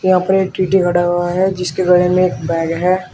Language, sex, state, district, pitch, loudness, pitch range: Hindi, male, Uttar Pradesh, Shamli, 180 Hz, -15 LUFS, 175-185 Hz